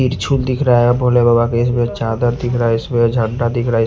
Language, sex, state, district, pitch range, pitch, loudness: Hindi, male, Bihar, West Champaran, 115-125 Hz, 120 Hz, -15 LUFS